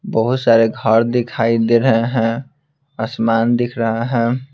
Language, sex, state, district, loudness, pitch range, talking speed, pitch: Hindi, male, Bihar, Patna, -16 LUFS, 115-125 Hz, 145 wpm, 115 Hz